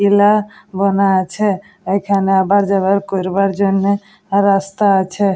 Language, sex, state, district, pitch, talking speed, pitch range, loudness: Bengali, female, West Bengal, Jalpaiguri, 200 Hz, 110 wpm, 195-200 Hz, -15 LUFS